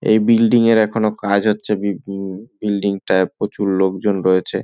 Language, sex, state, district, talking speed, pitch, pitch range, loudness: Bengali, male, West Bengal, North 24 Parganas, 170 wpm, 100 Hz, 95-110 Hz, -17 LUFS